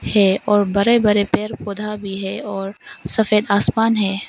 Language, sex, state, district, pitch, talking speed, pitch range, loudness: Hindi, female, Arunachal Pradesh, Longding, 205 Hz, 155 wpm, 195-210 Hz, -18 LUFS